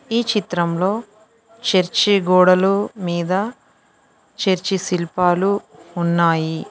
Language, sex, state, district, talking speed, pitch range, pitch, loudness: Telugu, female, Telangana, Mahabubabad, 70 wpm, 175-210 Hz, 190 Hz, -18 LUFS